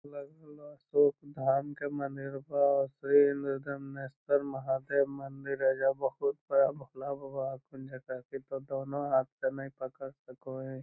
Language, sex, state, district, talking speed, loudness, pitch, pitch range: Magahi, male, Bihar, Lakhisarai, 155 wpm, -32 LUFS, 135 Hz, 135-140 Hz